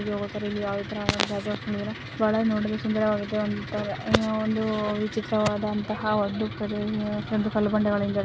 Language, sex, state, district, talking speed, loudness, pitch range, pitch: Kannada, female, Karnataka, Chamarajanagar, 110 wpm, -27 LUFS, 205-215 Hz, 210 Hz